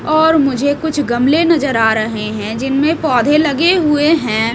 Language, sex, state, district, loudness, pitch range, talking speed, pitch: Hindi, female, Odisha, Malkangiri, -14 LUFS, 235-310 Hz, 170 wpm, 285 Hz